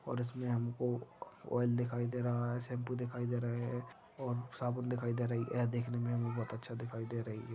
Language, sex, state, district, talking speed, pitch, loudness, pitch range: Hindi, male, Maharashtra, Chandrapur, 225 wpm, 120 Hz, -38 LUFS, 120-125 Hz